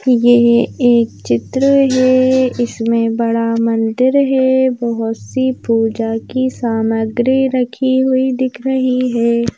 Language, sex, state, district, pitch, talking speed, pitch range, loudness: Hindi, female, Madhya Pradesh, Bhopal, 245 Hz, 115 wpm, 230-260 Hz, -14 LUFS